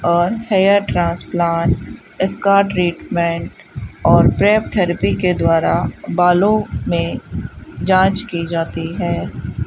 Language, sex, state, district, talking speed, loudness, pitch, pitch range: Hindi, female, Rajasthan, Bikaner, 100 wpm, -16 LUFS, 175 Hz, 170-195 Hz